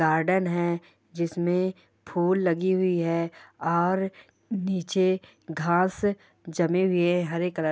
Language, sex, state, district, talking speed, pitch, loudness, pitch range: Hindi, female, Bihar, Bhagalpur, 125 wpm, 175 Hz, -26 LUFS, 170-185 Hz